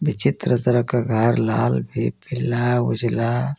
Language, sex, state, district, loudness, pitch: Hindi, male, Jharkhand, Garhwa, -20 LUFS, 110 Hz